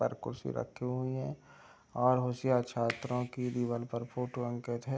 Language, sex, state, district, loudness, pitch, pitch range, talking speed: Hindi, male, Bihar, Gopalganj, -35 LUFS, 125 Hz, 120-125 Hz, 170 wpm